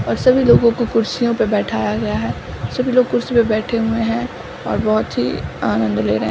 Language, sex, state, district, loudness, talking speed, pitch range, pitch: Hindi, female, Bihar, Samastipur, -17 LUFS, 220 wpm, 215-240 Hz, 230 Hz